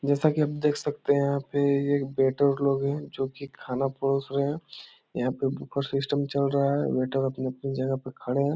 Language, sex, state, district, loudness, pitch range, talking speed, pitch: Hindi, male, Bihar, Jahanabad, -27 LUFS, 135-140 Hz, 230 wpm, 140 Hz